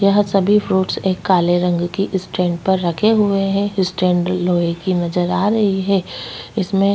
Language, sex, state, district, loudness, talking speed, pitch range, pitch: Hindi, female, Chhattisgarh, Bastar, -17 LUFS, 180 wpm, 180-200 Hz, 190 Hz